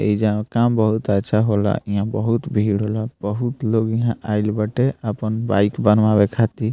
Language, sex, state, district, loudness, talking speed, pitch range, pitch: Bhojpuri, male, Bihar, Muzaffarpur, -20 LUFS, 160 wpm, 105-115 Hz, 110 Hz